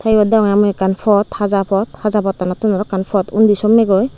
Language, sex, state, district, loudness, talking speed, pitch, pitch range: Chakma, female, Tripura, Unakoti, -15 LUFS, 185 wpm, 205 Hz, 195-215 Hz